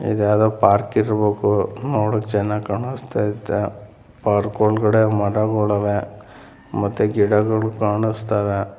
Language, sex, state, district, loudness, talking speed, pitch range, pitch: Kannada, male, Karnataka, Mysore, -20 LUFS, 100 wpm, 105-110 Hz, 105 Hz